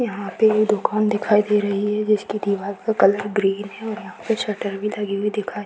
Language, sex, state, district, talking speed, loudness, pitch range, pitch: Hindi, female, Bihar, Jahanabad, 245 wpm, -21 LUFS, 200-215 Hz, 210 Hz